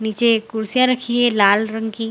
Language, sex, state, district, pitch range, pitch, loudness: Hindi, female, Bihar, Samastipur, 220-240 Hz, 225 Hz, -17 LUFS